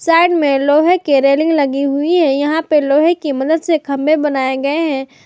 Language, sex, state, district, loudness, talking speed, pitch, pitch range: Hindi, female, Jharkhand, Garhwa, -14 LUFS, 205 wpm, 295 Hz, 275-320 Hz